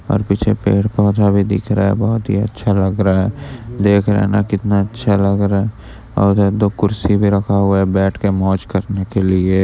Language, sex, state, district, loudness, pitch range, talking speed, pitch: Hindi, male, Maharashtra, Sindhudurg, -15 LUFS, 100-105 Hz, 205 wpm, 100 Hz